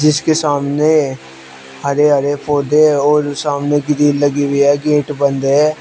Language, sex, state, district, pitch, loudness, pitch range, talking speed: Hindi, male, Uttar Pradesh, Shamli, 145 Hz, -14 LUFS, 140-150 Hz, 145 wpm